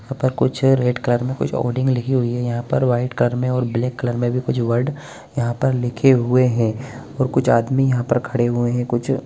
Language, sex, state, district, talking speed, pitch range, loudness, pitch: Hindi, male, Bihar, Gopalganj, 240 wpm, 120-130 Hz, -19 LUFS, 125 Hz